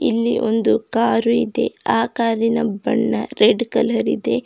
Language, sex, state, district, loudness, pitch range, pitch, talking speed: Kannada, female, Karnataka, Bidar, -18 LUFS, 225-230 Hz, 230 Hz, 135 wpm